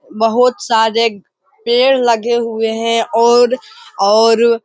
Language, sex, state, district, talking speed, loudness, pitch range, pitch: Hindi, female, Bihar, Jamui, 115 wpm, -13 LUFS, 225-245 Hz, 230 Hz